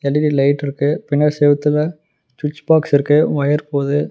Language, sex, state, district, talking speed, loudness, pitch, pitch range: Tamil, male, Tamil Nadu, Namakkal, 145 wpm, -16 LUFS, 145 Hz, 140-150 Hz